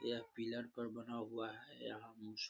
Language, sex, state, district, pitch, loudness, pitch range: Hindi, male, Bihar, Gaya, 115 Hz, -47 LUFS, 110-120 Hz